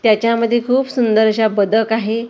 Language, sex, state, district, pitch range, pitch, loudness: Marathi, female, Maharashtra, Gondia, 220-235 Hz, 225 Hz, -15 LUFS